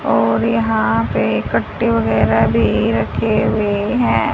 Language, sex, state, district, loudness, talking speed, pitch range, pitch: Hindi, female, Haryana, Charkhi Dadri, -16 LUFS, 125 wpm, 110-115 Hz, 115 Hz